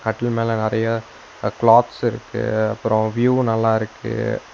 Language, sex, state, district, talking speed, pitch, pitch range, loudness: Tamil, male, Tamil Nadu, Nilgiris, 130 wpm, 115 Hz, 110-115 Hz, -20 LUFS